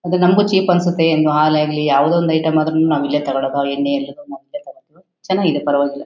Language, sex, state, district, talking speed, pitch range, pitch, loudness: Kannada, female, Karnataka, Shimoga, 150 wpm, 140-175 Hz, 155 Hz, -16 LUFS